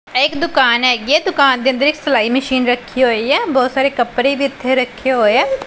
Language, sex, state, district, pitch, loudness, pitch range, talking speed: Punjabi, female, Punjab, Pathankot, 260 Hz, -14 LUFS, 250-275 Hz, 210 wpm